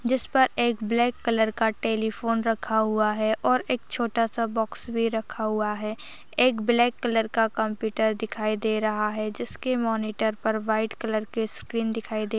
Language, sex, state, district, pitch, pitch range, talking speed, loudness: Hindi, female, Chhattisgarh, Sarguja, 225 Hz, 220-230 Hz, 180 wpm, -25 LUFS